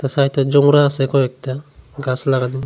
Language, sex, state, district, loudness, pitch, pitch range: Bengali, male, Tripura, Unakoti, -16 LUFS, 135 Hz, 130-140 Hz